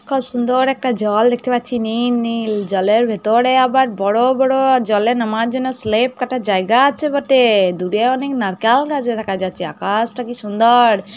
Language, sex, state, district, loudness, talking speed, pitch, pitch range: Bengali, female, West Bengal, Jhargram, -16 LUFS, 160 wpm, 240 Hz, 215-255 Hz